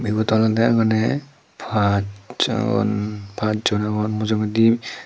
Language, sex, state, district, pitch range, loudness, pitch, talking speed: Chakma, male, Tripura, Dhalai, 105-115 Hz, -20 LUFS, 110 Hz, 95 wpm